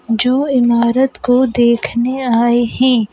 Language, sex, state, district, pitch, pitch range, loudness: Hindi, female, Madhya Pradesh, Bhopal, 240 Hz, 235-255 Hz, -14 LUFS